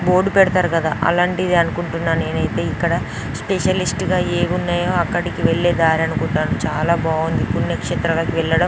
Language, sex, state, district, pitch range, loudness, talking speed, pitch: Telugu, female, Andhra Pradesh, Anantapur, 160-180 Hz, -18 LUFS, 130 wpm, 170 Hz